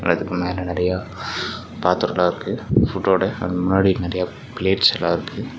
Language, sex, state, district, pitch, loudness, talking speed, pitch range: Tamil, male, Tamil Nadu, Nilgiris, 90 Hz, -21 LUFS, 130 wpm, 90-95 Hz